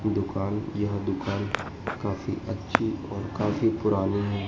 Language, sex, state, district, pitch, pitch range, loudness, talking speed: Hindi, male, Madhya Pradesh, Dhar, 100 Hz, 100-105 Hz, -28 LUFS, 120 wpm